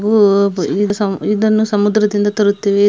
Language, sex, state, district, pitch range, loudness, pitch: Kannada, female, Karnataka, Belgaum, 200-210 Hz, -14 LUFS, 205 Hz